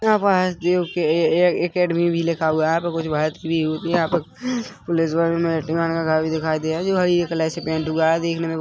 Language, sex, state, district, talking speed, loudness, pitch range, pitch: Hindi, male, Chhattisgarh, Korba, 230 wpm, -21 LUFS, 160-175 Hz, 165 Hz